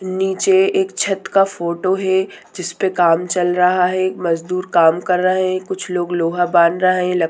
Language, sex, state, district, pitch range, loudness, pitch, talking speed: Hindi, female, Bihar, Sitamarhi, 175-190 Hz, -17 LUFS, 180 Hz, 190 wpm